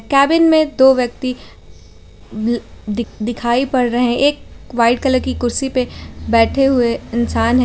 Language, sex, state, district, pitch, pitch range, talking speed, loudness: Hindi, female, Jharkhand, Garhwa, 245 Hz, 230-265 Hz, 150 wpm, -16 LUFS